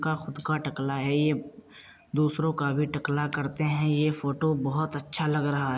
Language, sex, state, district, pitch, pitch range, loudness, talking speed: Hindi, male, Uttar Pradesh, Jyotiba Phule Nagar, 150 Hz, 140-155 Hz, -28 LUFS, 185 wpm